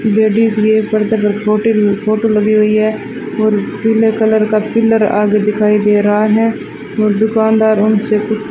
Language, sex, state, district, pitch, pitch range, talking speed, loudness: Hindi, female, Rajasthan, Bikaner, 215 Hz, 210-220 Hz, 160 wpm, -13 LUFS